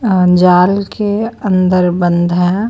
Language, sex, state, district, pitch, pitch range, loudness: Hindi, female, Bihar, Patna, 185 Hz, 180-205 Hz, -12 LUFS